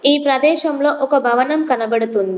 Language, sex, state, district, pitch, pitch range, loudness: Telugu, female, Telangana, Komaram Bheem, 270 Hz, 235-290 Hz, -16 LUFS